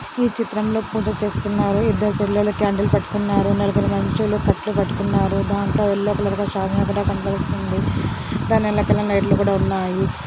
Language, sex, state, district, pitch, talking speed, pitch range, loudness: Telugu, male, Andhra Pradesh, Anantapur, 205 Hz, 145 wpm, 200-210 Hz, -20 LUFS